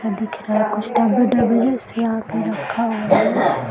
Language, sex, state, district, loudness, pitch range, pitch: Hindi, female, Bihar, Sitamarhi, -19 LUFS, 215-230 Hz, 225 Hz